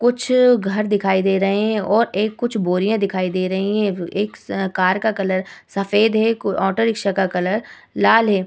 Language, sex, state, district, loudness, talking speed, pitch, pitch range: Hindi, female, Uttar Pradesh, Muzaffarnagar, -19 LUFS, 200 wpm, 205 Hz, 190-220 Hz